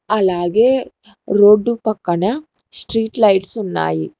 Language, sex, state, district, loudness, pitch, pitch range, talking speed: Telugu, female, Telangana, Hyderabad, -16 LUFS, 210 Hz, 190-225 Hz, 85 wpm